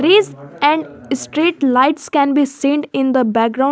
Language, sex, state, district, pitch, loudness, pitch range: English, female, Jharkhand, Garhwa, 280 Hz, -16 LUFS, 265-300 Hz